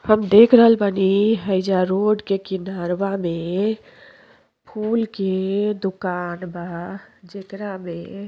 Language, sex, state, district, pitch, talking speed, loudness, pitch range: Bhojpuri, female, Uttar Pradesh, Deoria, 195 Hz, 115 wpm, -20 LUFS, 185-210 Hz